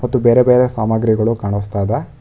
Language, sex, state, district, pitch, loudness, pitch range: Kannada, male, Karnataka, Bangalore, 115 Hz, -15 LUFS, 110-125 Hz